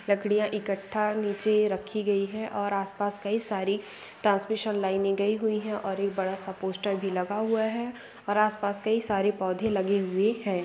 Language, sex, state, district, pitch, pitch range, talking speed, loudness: Hindi, female, West Bengal, Dakshin Dinajpur, 205 Hz, 195-215 Hz, 190 wpm, -28 LUFS